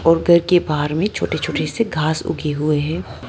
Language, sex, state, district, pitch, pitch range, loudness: Hindi, female, Arunachal Pradesh, Lower Dibang Valley, 160 Hz, 150-170 Hz, -19 LUFS